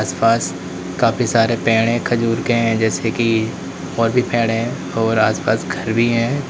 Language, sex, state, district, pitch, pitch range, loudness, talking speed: Hindi, male, Uttar Pradesh, Lalitpur, 115 Hz, 110-115 Hz, -18 LUFS, 175 wpm